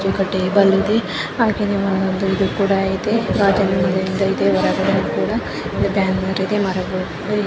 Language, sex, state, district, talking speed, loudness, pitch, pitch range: Kannada, female, Karnataka, Dharwad, 105 wpm, -18 LUFS, 195 Hz, 190-200 Hz